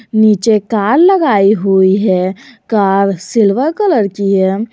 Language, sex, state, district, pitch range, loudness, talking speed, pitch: Hindi, female, Jharkhand, Garhwa, 195-230 Hz, -12 LUFS, 125 wpm, 210 Hz